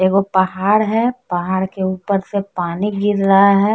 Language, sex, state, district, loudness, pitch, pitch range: Hindi, female, Jharkhand, Deoghar, -17 LUFS, 195 Hz, 190-205 Hz